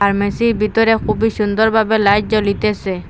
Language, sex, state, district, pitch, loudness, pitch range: Bengali, female, Assam, Hailakandi, 215 Hz, -15 LUFS, 200-220 Hz